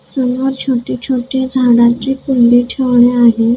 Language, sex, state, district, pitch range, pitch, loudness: Marathi, female, Maharashtra, Gondia, 240-260 Hz, 250 Hz, -12 LUFS